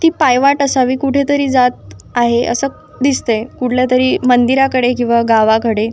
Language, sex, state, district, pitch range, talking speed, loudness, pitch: Marathi, female, Maharashtra, Nagpur, 235-270 Hz, 120 wpm, -13 LUFS, 250 Hz